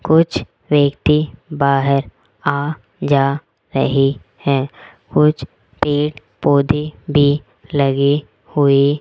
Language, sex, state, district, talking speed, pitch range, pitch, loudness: Hindi, female, Rajasthan, Jaipur, 95 wpm, 135-150 Hz, 140 Hz, -17 LUFS